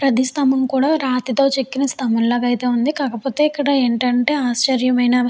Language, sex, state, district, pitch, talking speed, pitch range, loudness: Telugu, female, Andhra Pradesh, Chittoor, 260 Hz, 170 wpm, 245-275 Hz, -18 LUFS